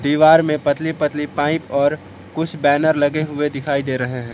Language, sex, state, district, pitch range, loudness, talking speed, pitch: Hindi, male, Jharkhand, Palamu, 140-155 Hz, -18 LUFS, 195 wpm, 150 Hz